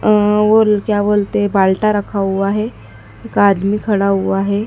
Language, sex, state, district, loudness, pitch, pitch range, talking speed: Hindi, female, Madhya Pradesh, Dhar, -15 LUFS, 205 Hz, 195-210 Hz, 180 wpm